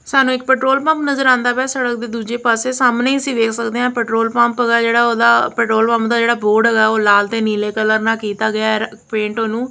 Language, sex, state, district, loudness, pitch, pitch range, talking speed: Punjabi, female, Punjab, Kapurthala, -15 LUFS, 230 Hz, 220-245 Hz, 230 wpm